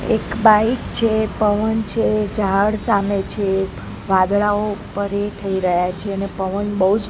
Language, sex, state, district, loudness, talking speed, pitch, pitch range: Gujarati, female, Gujarat, Gandhinagar, -19 LUFS, 145 wpm, 205 Hz, 195-215 Hz